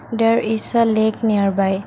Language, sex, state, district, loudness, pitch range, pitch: English, female, Assam, Kamrup Metropolitan, -15 LUFS, 200-225 Hz, 220 Hz